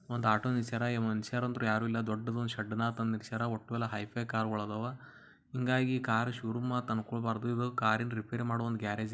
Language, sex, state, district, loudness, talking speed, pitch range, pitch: Kannada, male, Karnataka, Bijapur, -34 LUFS, 175 wpm, 110-120 Hz, 115 Hz